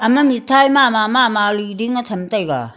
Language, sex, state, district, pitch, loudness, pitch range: Wancho, female, Arunachal Pradesh, Longding, 225 Hz, -15 LUFS, 205-260 Hz